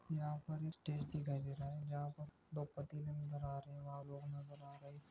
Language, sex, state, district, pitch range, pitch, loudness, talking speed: Hindi, male, Maharashtra, Chandrapur, 140-150 Hz, 145 Hz, -47 LUFS, 225 wpm